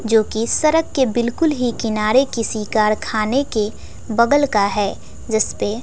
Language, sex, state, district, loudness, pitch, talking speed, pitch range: Hindi, female, Bihar, West Champaran, -18 LUFS, 225 Hz, 135 wpm, 215-265 Hz